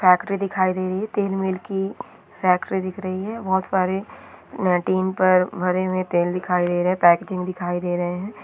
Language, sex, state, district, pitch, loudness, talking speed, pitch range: Hindi, female, Bihar, Jahanabad, 185 Hz, -22 LUFS, 200 wpm, 180-195 Hz